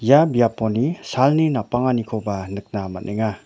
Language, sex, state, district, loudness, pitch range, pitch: Garo, male, Meghalaya, West Garo Hills, -20 LUFS, 100-130 Hz, 115 Hz